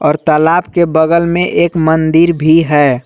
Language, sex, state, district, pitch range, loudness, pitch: Hindi, male, Jharkhand, Garhwa, 155-170 Hz, -11 LUFS, 160 Hz